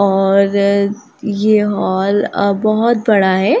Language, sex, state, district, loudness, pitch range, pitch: Hindi, female, Bihar, Saran, -14 LUFS, 200-215 Hz, 200 Hz